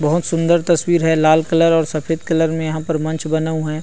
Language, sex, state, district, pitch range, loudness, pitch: Chhattisgarhi, male, Chhattisgarh, Rajnandgaon, 155-165 Hz, -17 LUFS, 160 Hz